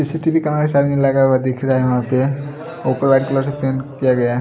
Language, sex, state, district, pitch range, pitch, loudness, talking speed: Hindi, male, Odisha, Sambalpur, 130-145 Hz, 135 Hz, -17 LUFS, 245 wpm